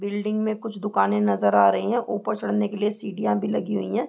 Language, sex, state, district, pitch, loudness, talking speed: Hindi, female, Bihar, Gopalganj, 205 Hz, -23 LUFS, 250 wpm